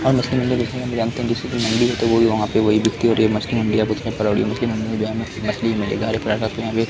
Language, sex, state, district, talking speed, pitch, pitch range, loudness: Hindi, male, Bihar, Kishanganj, 85 wpm, 115 Hz, 110-120 Hz, -20 LUFS